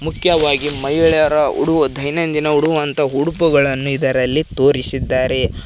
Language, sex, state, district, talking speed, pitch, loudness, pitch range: Kannada, male, Karnataka, Koppal, 85 wpm, 145 Hz, -15 LUFS, 135-155 Hz